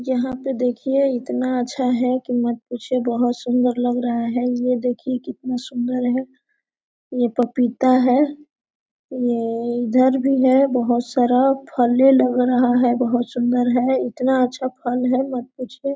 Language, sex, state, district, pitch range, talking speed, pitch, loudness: Hindi, female, Jharkhand, Sahebganj, 245-260 Hz, 160 wpm, 250 Hz, -19 LUFS